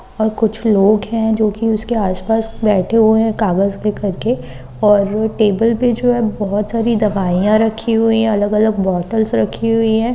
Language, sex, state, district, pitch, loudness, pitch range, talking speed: Hindi, female, Chhattisgarh, Bilaspur, 220 Hz, -15 LUFS, 205-225 Hz, 165 wpm